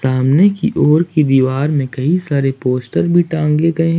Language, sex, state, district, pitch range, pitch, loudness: Hindi, male, Jharkhand, Ranchi, 135-165 Hz, 150 Hz, -14 LUFS